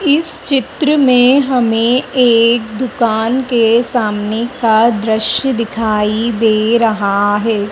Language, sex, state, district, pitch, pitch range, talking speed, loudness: Hindi, female, Madhya Pradesh, Dhar, 230 Hz, 220-255 Hz, 110 wpm, -13 LUFS